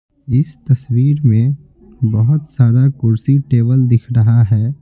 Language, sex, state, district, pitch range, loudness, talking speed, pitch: Hindi, male, Bihar, Patna, 115-140 Hz, -14 LUFS, 125 wpm, 125 Hz